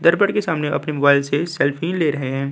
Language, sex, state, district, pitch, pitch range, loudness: Hindi, male, Uttarakhand, Tehri Garhwal, 150 Hz, 140-170 Hz, -19 LUFS